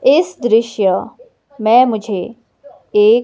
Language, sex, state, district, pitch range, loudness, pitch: Hindi, female, Himachal Pradesh, Shimla, 220-355 Hz, -15 LUFS, 240 Hz